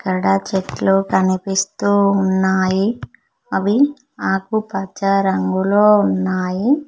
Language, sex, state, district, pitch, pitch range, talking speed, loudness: Telugu, female, Telangana, Mahabubabad, 195 Hz, 190-205 Hz, 80 wpm, -17 LUFS